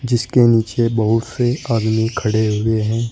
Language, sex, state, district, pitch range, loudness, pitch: Hindi, male, Uttar Pradesh, Shamli, 110-120 Hz, -17 LUFS, 115 Hz